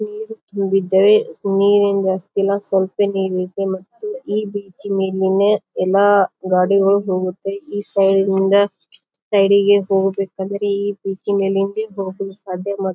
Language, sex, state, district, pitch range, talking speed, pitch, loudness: Kannada, female, Karnataka, Bijapur, 190-205 Hz, 125 wpm, 195 Hz, -18 LUFS